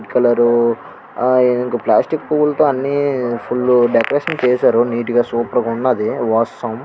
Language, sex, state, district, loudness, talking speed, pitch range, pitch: Telugu, male, Andhra Pradesh, Krishna, -16 LUFS, 130 wpm, 120-130 Hz, 125 Hz